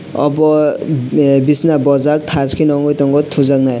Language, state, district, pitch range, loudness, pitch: Kokborok, Tripura, West Tripura, 140-150 Hz, -13 LUFS, 145 Hz